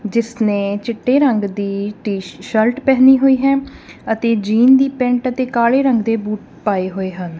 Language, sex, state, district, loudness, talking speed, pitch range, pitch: Punjabi, female, Punjab, Kapurthala, -16 LUFS, 180 wpm, 205-255 Hz, 230 Hz